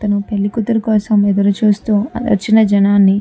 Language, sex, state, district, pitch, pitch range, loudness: Telugu, female, Andhra Pradesh, Chittoor, 210 Hz, 200-220 Hz, -14 LUFS